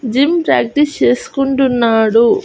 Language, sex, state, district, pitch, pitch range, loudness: Telugu, female, Andhra Pradesh, Annamaya, 270 Hz, 235-295 Hz, -13 LUFS